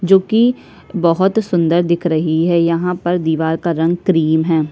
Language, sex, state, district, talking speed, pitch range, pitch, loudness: Hindi, female, Chhattisgarh, Kabirdham, 150 wpm, 160-180 Hz, 170 Hz, -15 LUFS